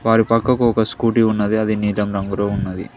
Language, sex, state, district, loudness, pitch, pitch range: Telugu, male, Telangana, Mahabubabad, -18 LUFS, 110 Hz, 100-115 Hz